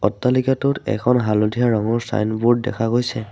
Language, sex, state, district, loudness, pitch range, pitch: Assamese, male, Assam, Sonitpur, -19 LUFS, 110-125 Hz, 120 Hz